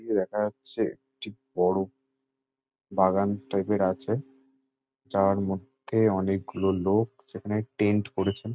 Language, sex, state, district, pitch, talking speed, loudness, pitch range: Bengali, male, West Bengal, Jalpaiguri, 105 Hz, 105 wpm, -27 LUFS, 95-135 Hz